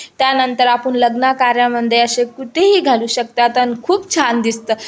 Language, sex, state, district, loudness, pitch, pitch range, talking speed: Marathi, female, Maharashtra, Aurangabad, -14 LUFS, 245 Hz, 235-265 Hz, 160 wpm